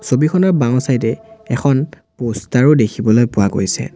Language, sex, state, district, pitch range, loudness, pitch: Assamese, male, Assam, Sonitpur, 115-150 Hz, -15 LUFS, 125 Hz